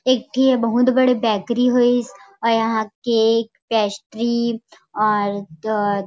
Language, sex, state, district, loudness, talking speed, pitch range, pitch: Chhattisgarhi, female, Chhattisgarh, Raigarh, -19 LUFS, 130 wpm, 210-245 Hz, 225 Hz